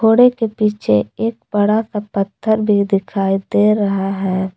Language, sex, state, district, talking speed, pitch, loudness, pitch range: Hindi, female, Jharkhand, Palamu, 130 wpm, 205 Hz, -16 LUFS, 195-220 Hz